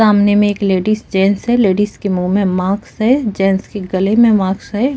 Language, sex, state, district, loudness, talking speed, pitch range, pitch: Hindi, female, Chhattisgarh, Kabirdham, -14 LUFS, 215 wpm, 195-215 Hz, 205 Hz